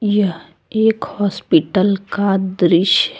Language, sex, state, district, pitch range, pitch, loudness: Hindi, female, Jharkhand, Deoghar, 190-220 Hz, 200 Hz, -16 LUFS